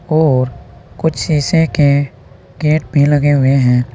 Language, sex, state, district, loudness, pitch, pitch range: Hindi, male, Uttar Pradesh, Saharanpur, -13 LUFS, 145 Hz, 130-155 Hz